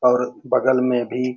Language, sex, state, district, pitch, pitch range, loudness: Hindi, male, Bihar, Saran, 125 Hz, 125-130 Hz, -20 LUFS